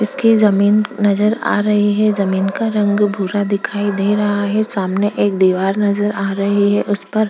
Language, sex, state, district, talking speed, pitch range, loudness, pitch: Hindi, female, Chhattisgarh, Korba, 180 wpm, 200-210 Hz, -16 LUFS, 205 Hz